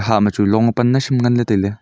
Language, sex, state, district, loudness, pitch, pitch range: Wancho, male, Arunachal Pradesh, Longding, -16 LUFS, 110 Hz, 105-120 Hz